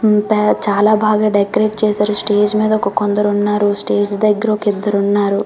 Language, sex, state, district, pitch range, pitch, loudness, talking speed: Telugu, female, Telangana, Karimnagar, 205-215 Hz, 210 Hz, -15 LUFS, 175 wpm